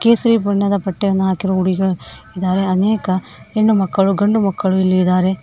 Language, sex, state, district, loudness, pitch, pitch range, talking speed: Kannada, female, Karnataka, Koppal, -16 LUFS, 190 Hz, 185-205 Hz, 130 wpm